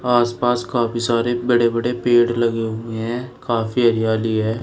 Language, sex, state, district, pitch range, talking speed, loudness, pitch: Hindi, male, Uttar Pradesh, Shamli, 115-120 Hz, 155 wpm, -19 LUFS, 120 Hz